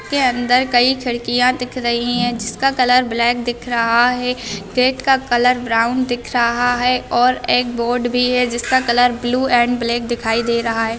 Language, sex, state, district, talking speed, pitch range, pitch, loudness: Hindi, female, Bihar, Gopalganj, 185 wpm, 235-250 Hz, 245 Hz, -16 LUFS